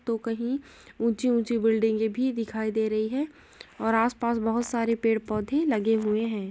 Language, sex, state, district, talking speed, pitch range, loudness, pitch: Hindi, female, Uttar Pradesh, Jalaun, 185 wpm, 220-235 Hz, -27 LUFS, 230 Hz